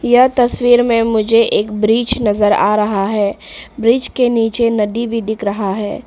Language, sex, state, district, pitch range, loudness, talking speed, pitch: Hindi, female, Arunachal Pradesh, Papum Pare, 210-240 Hz, -14 LUFS, 180 wpm, 225 Hz